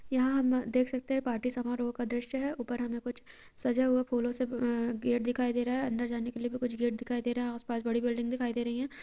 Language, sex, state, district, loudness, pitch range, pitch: Maithili, female, Bihar, Purnia, -32 LUFS, 240-255 Hz, 245 Hz